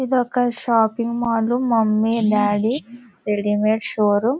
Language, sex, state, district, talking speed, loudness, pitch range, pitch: Telugu, female, Andhra Pradesh, Visakhapatnam, 125 wpm, -19 LUFS, 210-240 Hz, 225 Hz